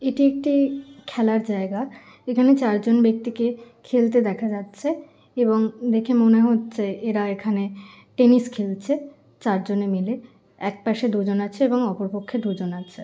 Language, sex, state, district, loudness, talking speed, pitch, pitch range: Bengali, female, West Bengal, Kolkata, -22 LUFS, 130 wpm, 230 Hz, 205-245 Hz